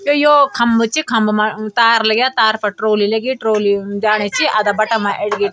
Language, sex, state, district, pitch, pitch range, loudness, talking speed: Garhwali, male, Uttarakhand, Tehri Garhwal, 220 Hz, 210-235 Hz, -14 LUFS, 195 wpm